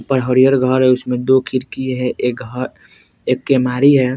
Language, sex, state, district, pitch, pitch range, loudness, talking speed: Bajjika, male, Bihar, Vaishali, 130 Hz, 125-130 Hz, -16 LUFS, 185 wpm